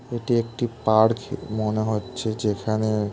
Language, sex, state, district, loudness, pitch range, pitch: Bengali, male, West Bengal, Kolkata, -24 LUFS, 110-120 Hz, 110 Hz